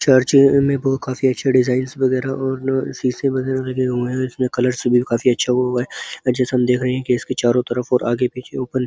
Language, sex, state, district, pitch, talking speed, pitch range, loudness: Hindi, male, Uttar Pradesh, Muzaffarnagar, 130 Hz, 245 wpm, 125-130 Hz, -18 LUFS